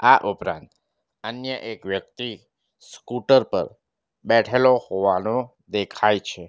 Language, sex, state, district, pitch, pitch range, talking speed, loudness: Gujarati, male, Gujarat, Valsad, 115 Hz, 105-125 Hz, 100 wpm, -22 LUFS